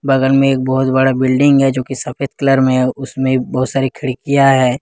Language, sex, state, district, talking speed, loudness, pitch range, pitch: Hindi, male, Jharkhand, Ranchi, 225 wpm, -14 LUFS, 130-135 Hz, 135 Hz